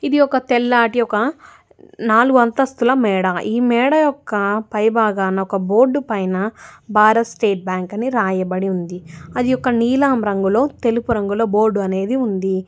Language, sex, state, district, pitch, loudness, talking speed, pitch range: Telugu, female, Telangana, Hyderabad, 220 Hz, -17 LUFS, 135 wpm, 195-250 Hz